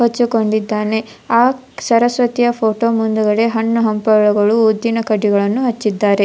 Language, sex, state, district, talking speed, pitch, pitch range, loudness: Kannada, female, Karnataka, Dharwad, 95 wpm, 225 Hz, 215-235 Hz, -15 LUFS